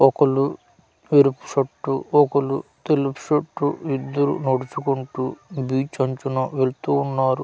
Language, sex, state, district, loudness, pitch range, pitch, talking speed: Telugu, male, Andhra Pradesh, Manyam, -22 LUFS, 130-145 Hz, 135 Hz, 95 wpm